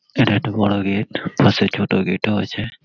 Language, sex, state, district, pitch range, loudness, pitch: Bengali, male, West Bengal, Malda, 100-110 Hz, -19 LUFS, 105 Hz